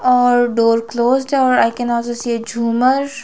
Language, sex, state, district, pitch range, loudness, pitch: Hindi, female, Himachal Pradesh, Shimla, 235-255 Hz, -16 LUFS, 240 Hz